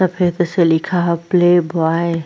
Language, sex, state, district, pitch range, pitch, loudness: Hindi, female, Bihar, Vaishali, 165-175 Hz, 170 Hz, -15 LUFS